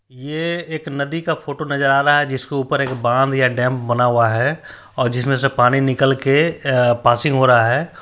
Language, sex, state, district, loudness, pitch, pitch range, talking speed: Hindi, male, Bihar, Supaul, -17 LUFS, 135 Hz, 125-145 Hz, 215 wpm